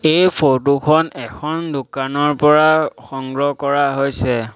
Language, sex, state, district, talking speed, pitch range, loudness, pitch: Assamese, male, Assam, Sonitpur, 105 wpm, 135-155 Hz, -16 LUFS, 145 Hz